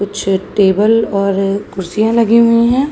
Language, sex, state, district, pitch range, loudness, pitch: Hindi, female, Uttar Pradesh, Jalaun, 195-230 Hz, -13 LUFS, 205 Hz